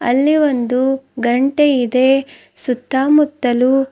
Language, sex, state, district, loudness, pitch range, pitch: Kannada, female, Karnataka, Bidar, -15 LUFS, 250-280 Hz, 265 Hz